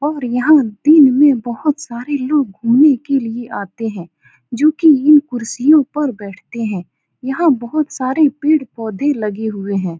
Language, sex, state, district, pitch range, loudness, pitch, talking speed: Hindi, female, Bihar, Saran, 225-295 Hz, -15 LUFS, 255 Hz, 155 wpm